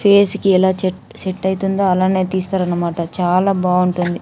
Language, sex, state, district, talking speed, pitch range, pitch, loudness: Telugu, female, Andhra Pradesh, Anantapur, 170 wpm, 180-190 Hz, 185 Hz, -17 LUFS